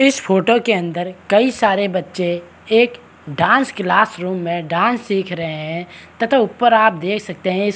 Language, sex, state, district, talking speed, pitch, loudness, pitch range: Hindi, male, Bihar, Kishanganj, 185 wpm, 195 Hz, -17 LUFS, 180-225 Hz